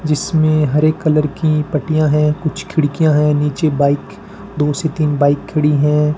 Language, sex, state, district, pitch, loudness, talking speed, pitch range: Hindi, male, Rajasthan, Bikaner, 150 Hz, -15 LUFS, 165 wpm, 150-155 Hz